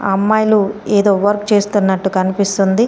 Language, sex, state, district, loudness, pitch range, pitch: Telugu, female, Telangana, Komaram Bheem, -14 LUFS, 195-210 Hz, 200 Hz